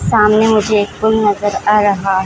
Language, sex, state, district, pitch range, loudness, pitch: Hindi, female, Bihar, Jamui, 205-215 Hz, -13 LUFS, 210 Hz